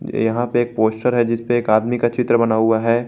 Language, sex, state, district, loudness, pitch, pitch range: Hindi, male, Jharkhand, Garhwa, -18 LUFS, 115 Hz, 110-120 Hz